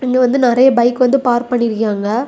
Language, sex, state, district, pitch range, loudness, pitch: Tamil, female, Tamil Nadu, Kanyakumari, 235-255 Hz, -13 LUFS, 245 Hz